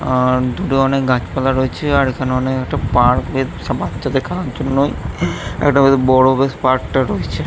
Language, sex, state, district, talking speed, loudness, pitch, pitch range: Bengali, male, West Bengal, Jhargram, 170 wpm, -16 LUFS, 130 Hz, 130-135 Hz